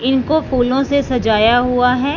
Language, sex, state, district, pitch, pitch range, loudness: Hindi, male, Punjab, Fazilka, 255 Hz, 245-275 Hz, -15 LUFS